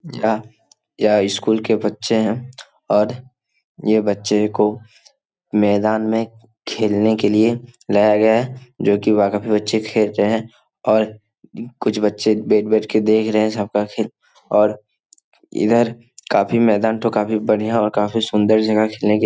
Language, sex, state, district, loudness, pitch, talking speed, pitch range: Hindi, male, Bihar, Jamui, -18 LUFS, 110 Hz, 165 wpm, 105-115 Hz